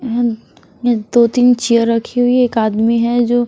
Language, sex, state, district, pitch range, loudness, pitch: Hindi, female, Bihar, West Champaran, 230-245 Hz, -14 LUFS, 235 Hz